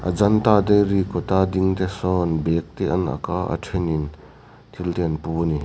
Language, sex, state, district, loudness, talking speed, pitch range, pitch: Mizo, male, Mizoram, Aizawl, -21 LUFS, 225 wpm, 85-100 Hz, 90 Hz